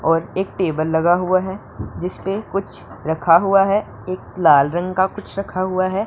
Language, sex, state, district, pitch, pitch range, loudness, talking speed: Hindi, male, Punjab, Pathankot, 185 Hz, 165-195 Hz, -19 LUFS, 190 wpm